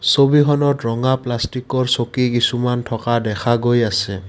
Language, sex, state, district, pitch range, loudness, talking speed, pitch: Assamese, male, Assam, Kamrup Metropolitan, 115-130 Hz, -17 LUFS, 125 wpm, 120 Hz